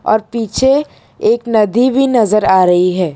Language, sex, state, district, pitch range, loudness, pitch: Hindi, female, Gujarat, Valsad, 190-260 Hz, -12 LUFS, 220 Hz